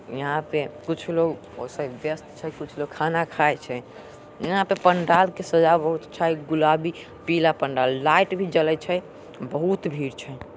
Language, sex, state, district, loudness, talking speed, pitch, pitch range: Angika, male, Bihar, Samastipur, -23 LUFS, 165 wpm, 160 Hz, 150-170 Hz